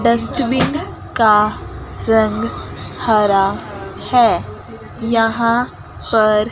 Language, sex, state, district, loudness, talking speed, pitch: Hindi, female, Chandigarh, Chandigarh, -16 LUFS, 65 wpm, 215 Hz